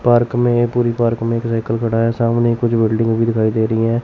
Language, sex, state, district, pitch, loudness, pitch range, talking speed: Hindi, male, Chandigarh, Chandigarh, 115 Hz, -16 LUFS, 115-120 Hz, 250 wpm